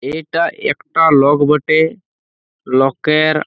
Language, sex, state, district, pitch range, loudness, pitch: Bengali, male, West Bengal, Malda, 135-160 Hz, -14 LUFS, 150 Hz